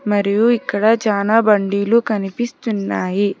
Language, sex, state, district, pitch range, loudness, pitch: Telugu, female, Telangana, Hyderabad, 200-230 Hz, -17 LUFS, 210 Hz